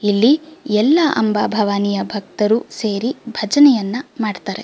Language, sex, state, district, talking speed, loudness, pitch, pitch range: Kannada, female, Karnataka, Shimoga, 105 wpm, -17 LUFS, 215 Hz, 205-260 Hz